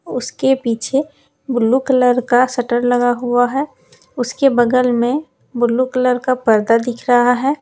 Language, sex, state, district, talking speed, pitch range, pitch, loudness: Hindi, female, Jharkhand, Deoghar, 150 wpm, 240-260 Hz, 245 Hz, -16 LUFS